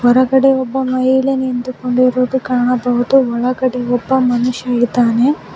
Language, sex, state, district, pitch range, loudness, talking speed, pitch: Kannada, female, Karnataka, Bangalore, 245-260 Hz, -14 LUFS, 95 wpm, 255 Hz